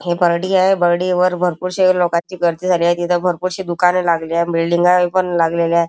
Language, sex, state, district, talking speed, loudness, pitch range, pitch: Marathi, male, Maharashtra, Chandrapur, 215 wpm, -16 LUFS, 170-180 Hz, 175 Hz